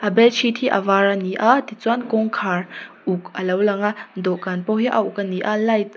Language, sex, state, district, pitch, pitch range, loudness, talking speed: Mizo, female, Mizoram, Aizawl, 210 Hz, 190-225 Hz, -20 LUFS, 220 wpm